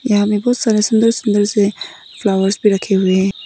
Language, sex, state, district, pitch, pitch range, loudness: Hindi, female, Nagaland, Kohima, 205 Hz, 195-220 Hz, -15 LUFS